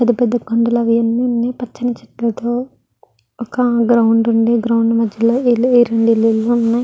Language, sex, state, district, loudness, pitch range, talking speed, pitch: Telugu, female, Andhra Pradesh, Guntur, -15 LUFS, 230-240 Hz, 140 wpm, 235 Hz